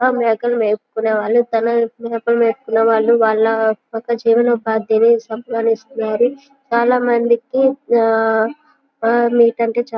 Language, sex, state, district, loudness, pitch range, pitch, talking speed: Telugu, female, Andhra Pradesh, Guntur, -16 LUFS, 225-240 Hz, 230 Hz, 115 wpm